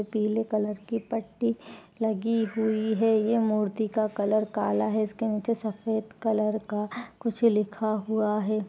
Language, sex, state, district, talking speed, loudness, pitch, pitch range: Hindi, female, Uttar Pradesh, Etah, 150 wpm, -27 LUFS, 215 Hz, 210-225 Hz